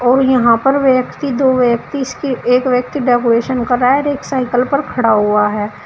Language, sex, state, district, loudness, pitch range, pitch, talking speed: Hindi, female, Uttar Pradesh, Shamli, -14 LUFS, 240-265 Hz, 250 Hz, 205 wpm